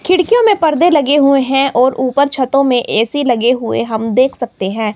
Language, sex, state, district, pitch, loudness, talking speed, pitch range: Hindi, female, Himachal Pradesh, Shimla, 265 Hz, -13 LUFS, 205 wpm, 245-285 Hz